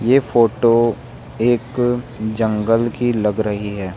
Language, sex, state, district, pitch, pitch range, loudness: Hindi, male, Rajasthan, Jaipur, 115 Hz, 110-120 Hz, -18 LUFS